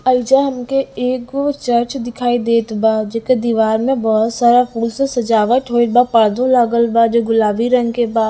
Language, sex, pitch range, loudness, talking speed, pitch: Bhojpuri, female, 230-250 Hz, -15 LUFS, 180 wpm, 240 Hz